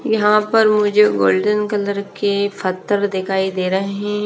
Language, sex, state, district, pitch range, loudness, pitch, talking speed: Hindi, female, Haryana, Charkhi Dadri, 190-210 Hz, -17 LUFS, 200 Hz, 140 wpm